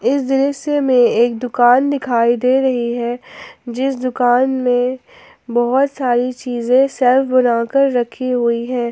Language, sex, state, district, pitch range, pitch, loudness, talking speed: Hindi, female, Jharkhand, Ranchi, 240-265 Hz, 250 Hz, -16 LUFS, 135 wpm